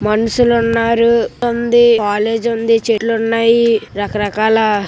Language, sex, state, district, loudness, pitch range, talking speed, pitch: Telugu, male, Andhra Pradesh, Visakhapatnam, -14 LUFS, 215-235 Hz, 110 wpm, 230 Hz